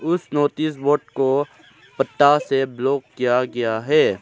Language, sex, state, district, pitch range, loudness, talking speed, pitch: Hindi, male, Arunachal Pradesh, Lower Dibang Valley, 130-145 Hz, -20 LUFS, 140 wpm, 140 Hz